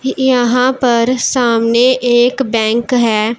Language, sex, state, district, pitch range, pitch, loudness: Hindi, male, Punjab, Pathankot, 230-255 Hz, 245 Hz, -12 LUFS